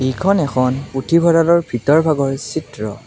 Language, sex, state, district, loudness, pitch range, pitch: Assamese, male, Assam, Kamrup Metropolitan, -16 LUFS, 130-165 Hz, 140 Hz